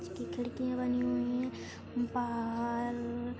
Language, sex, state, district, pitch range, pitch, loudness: Hindi, female, Jharkhand, Sahebganj, 240-250 Hz, 245 Hz, -35 LUFS